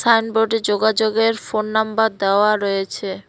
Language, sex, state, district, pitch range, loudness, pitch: Bengali, female, West Bengal, Cooch Behar, 200-225 Hz, -18 LUFS, 215 Hz